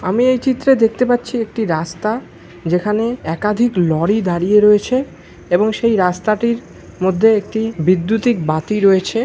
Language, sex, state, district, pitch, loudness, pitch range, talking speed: Bengali, male, West Bengal, Malda, 215 Hz, -16 LUFS, 185-235 Hz, 130 wpm